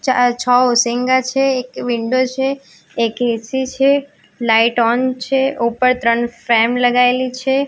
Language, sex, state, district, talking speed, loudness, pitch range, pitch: Gujarati, female, Gujarat, Gandhinagar, 135 wpm, -16 LUFS, 235-260 Hz, 250 Hz